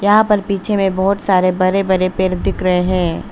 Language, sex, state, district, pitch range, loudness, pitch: Hindi, female, Arunachal Pradesh, Papum Pare, 185-200 Hz, -15 LUFS, 190 Hz